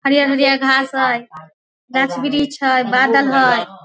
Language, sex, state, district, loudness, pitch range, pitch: Maithili, female, Bihar, Samastipur, -15 LUFS, 250-275 Hz, 265 Hz